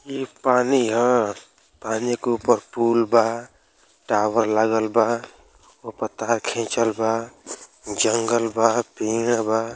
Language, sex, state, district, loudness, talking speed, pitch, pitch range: Hindi, male, Uttar Pradesh, Ghazipur, -21 LUFS, 115 wpm, 115 Hz, 110-120 Hz